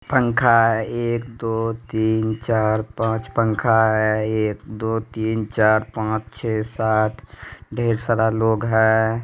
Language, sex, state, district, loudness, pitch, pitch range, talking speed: Hindi, male, Bihar, East Champaran, -20 LUFS, 110 Hz, 110-115 Hz, 125 wpm